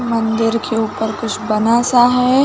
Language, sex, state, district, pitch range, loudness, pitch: Hindi, female, Chhattisgarh, Bilaspur, 220-245 Hz, -15 LUFS, 230 Hz